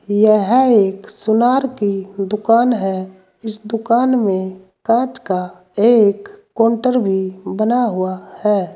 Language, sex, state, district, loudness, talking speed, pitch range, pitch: Hindi, male, Uttar Pradesh, Saharanpur, -16 LUFS, 115 wpm, 190-235 Hz, 210 Hz